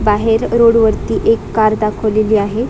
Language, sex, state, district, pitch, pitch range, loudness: Marathi, female, Maharashtra, Dhule, 220 Hz, 215-230 Hz, -13 LUFS